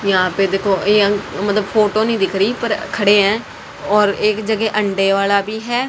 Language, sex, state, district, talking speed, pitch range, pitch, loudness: Hindi, female, Haryana, Rohtak, 175 wpm, 195-215 Hz, 205 Hz, -16 LUFS